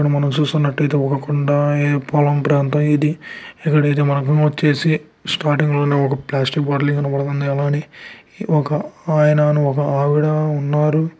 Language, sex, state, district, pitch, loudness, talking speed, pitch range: Telugu, male, Andhra Pradesh, Guntur, 145 Hz, -17 LUFS, 120 wpm, 145-150 Hz